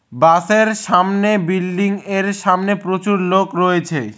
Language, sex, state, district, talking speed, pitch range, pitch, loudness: Bengali, male, West Bengal, Cooch Behar, 100 wpm, 180-200 Hz, 190 Hz, -16 LUFS